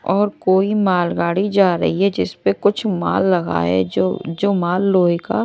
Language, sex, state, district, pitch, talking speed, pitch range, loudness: Hindi, male, Odisha, Malkangiri, 185 Hz, 185 wpm, 170-200 Hz, -17 LUFS